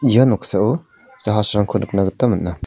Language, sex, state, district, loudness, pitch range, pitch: Garo, male, Meghalaya, South Garo Hills, -18 LUFS, 95-120 Hz, 105 Hz